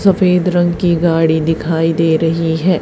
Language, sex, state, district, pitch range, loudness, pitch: Hindi, female, Haryana, Charkhi Dadri, 160-180 Hz, -14 LUFS, 165 Hz